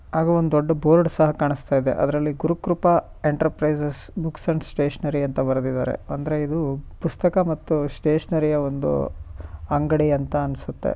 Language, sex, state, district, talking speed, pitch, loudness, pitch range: Kannada, male, Karnataka, Shimoga, 130 wpm, 150 Hz, -22 LUFS, 140-160 Hz